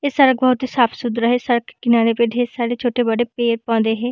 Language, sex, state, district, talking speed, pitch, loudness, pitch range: Hindi, female, Bihar, Samastipur, 230 wpm, 240 Hz, -18 LUFS, 235-245 Hz